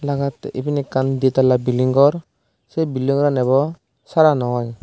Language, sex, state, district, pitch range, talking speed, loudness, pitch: Chakma, male, Tripura, Dhalai, 130-145 Hz, 185 wpm, -18 LUFS, 135 Hz